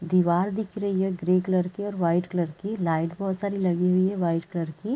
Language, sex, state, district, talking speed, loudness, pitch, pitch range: Hindi, female, Chhattisgarh, Raigarh, 240 wpm, -26 LUFS, 185 Hz, 175-195 Hz